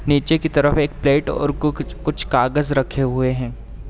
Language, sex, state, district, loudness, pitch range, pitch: Hindi, male, Uttar Pradesh, Deoria, -19 LUFS, 130-150 Hz, 145 Hz